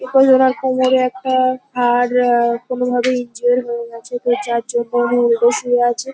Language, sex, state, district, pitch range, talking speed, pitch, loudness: Bengali, female, West Bengal, North 24 Parganas, 240-255 Hz, 155 wpm, 245 Hz, -16 LUFS